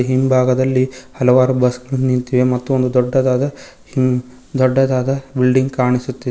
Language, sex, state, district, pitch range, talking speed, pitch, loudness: Kannada, male, Karnataka, Koppal, 125-130 Hz, 85 wpm, 130 Hz, -16 LUFS